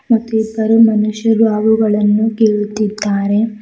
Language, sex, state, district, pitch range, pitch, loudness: Kannada, female, Karnataka, Bidar, 210-225 Hz, 220 Hz, -14 LUFS